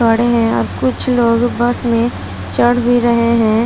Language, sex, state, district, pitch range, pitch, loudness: Hindi, female, Uttar Pradesh, Muzaffarnagar, 225-240 Hz, 235 Hz, -14 LUFS